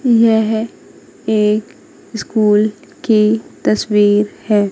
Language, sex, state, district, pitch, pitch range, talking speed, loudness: Hindi, female, Madhya Pradesh, Katni, 220 Hz, 210-230 Hz, 75 wpm, -15 LUFS